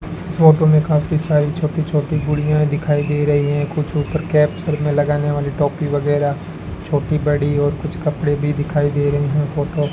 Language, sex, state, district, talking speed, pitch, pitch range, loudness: Hindi, male, Rajasthan, Bikaner, 195 wpm, 150 Hz, 145-155 Hz, -18 LUFS